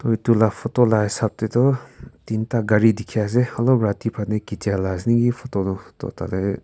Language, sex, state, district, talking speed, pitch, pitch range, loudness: Nagamese, male, Nagaland, Kohima, 200 wpm, 110 Hz, 105-120 Hz, -21 LUFS